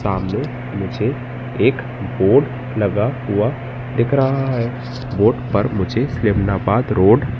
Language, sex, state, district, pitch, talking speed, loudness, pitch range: Hindi, male, Madhya Pradesh, Katni, 125 Hz, 120 wpm, -19 LUFS, 100-130 Hz